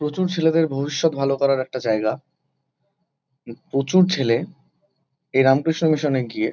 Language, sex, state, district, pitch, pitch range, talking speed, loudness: Bengali, male, West Bengal, Kolkata, 140 Hz, 135-160 Hz, 140 wpm, -20 LUFS